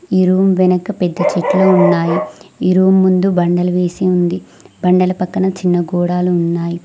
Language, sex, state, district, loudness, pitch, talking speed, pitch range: Telugu, female, Telangana, Mahabubabad, -14 LUFS, 180 Hz, 150 wpm, 175-185 Hz